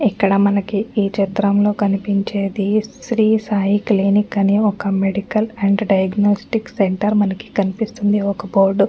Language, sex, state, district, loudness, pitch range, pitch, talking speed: Telugu, female, Andhra Pradesh, Anantapur, -17 LUFS, 195-210 Hz, 205 Hz, 120 wpm